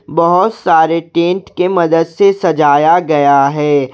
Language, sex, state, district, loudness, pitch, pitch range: Hindi, male, Jharkhand, Garhwa, -11 LUFS, 165 Hz, 150-180 Hz